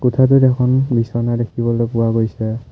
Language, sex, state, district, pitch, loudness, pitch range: Assamese, male, Assam, Kamrup Metropolitan, 120 Hz, -16 LUFS, 115-125 Hz